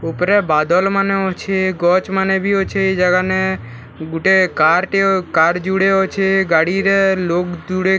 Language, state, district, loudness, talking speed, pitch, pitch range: Sambalpuri, Odisha, Sambalpur, -15 LUFS, 185 wpm, 190 Hz, 175-195 Hz